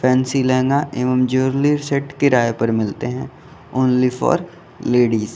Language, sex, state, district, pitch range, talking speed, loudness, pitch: Hindi, male, Uttar Pradesh, Lalitpur, 125-140 Hz, 145 wpm, -18 LUFS, 130 Hz